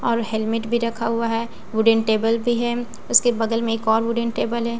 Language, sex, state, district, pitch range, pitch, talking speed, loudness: Hindi, female, Bihar, Katihar, 225-235 Hz, 230 Hz, 225 wpm, -21 LUFS